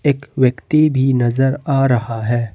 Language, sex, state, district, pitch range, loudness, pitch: Hindi, male, Jharkhand, Ranchi, 120-140 Hz, -16 LUFS, 130 Hz